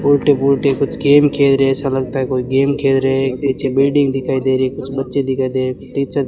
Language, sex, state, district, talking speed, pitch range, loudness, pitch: Hindi, male, Rajasthan, Bikaner, 275 wpm, 130-140 Hz, -16 LUFS, 135 Hz